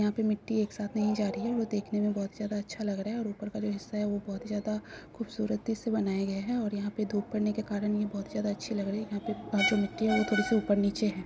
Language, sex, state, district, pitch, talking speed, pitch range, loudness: Hindi, female, Bihar, Kishanganj, 210 Hz, 305 wpm, 205-215 Hz, -31 LUFS